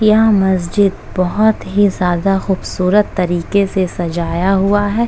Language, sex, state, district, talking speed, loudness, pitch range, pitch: Hindi, female, Uttar Pradesh, Etah, 130 wpm, -15 LUFS, 180-205 Hz, 195 Hz